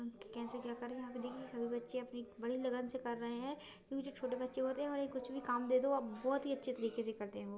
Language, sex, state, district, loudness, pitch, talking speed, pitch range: Hindi, female, Maharashtra, Aurangabad, -41 LUFS, 250 Hz, 290 wpm, 235-260 Hz